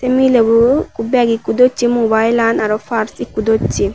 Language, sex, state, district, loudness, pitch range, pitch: Chakma, female, Tripura, West Tripura, -14 LUFS, 220-250 Hz, 230 Hz